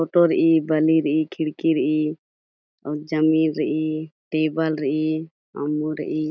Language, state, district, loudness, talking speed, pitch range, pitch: Kurukh, Chhattisgarh, Jashpur, -22 LUFS, 135 wpm, 155-160 Hz, 155 Hz